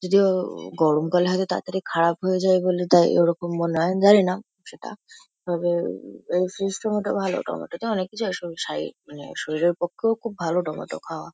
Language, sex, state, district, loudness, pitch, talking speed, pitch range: Bengali, female, West Bengal, Kolkata, -23 LUFS, 180 Hz, 170 wpm, 170-190 Hz